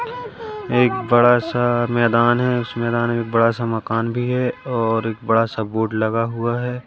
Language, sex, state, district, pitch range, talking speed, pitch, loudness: Hindi, male, Madhya Pradesh, Katni, 115-125 Hz, 185 wpm, 120 Hz, -19 LUFS